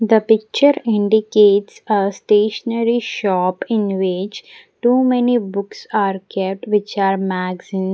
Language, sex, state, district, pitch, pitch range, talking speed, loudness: English, female, Punjab, Pathankot, 210 Hz, 195-230 Hz, 120 wpm, -17 LUFS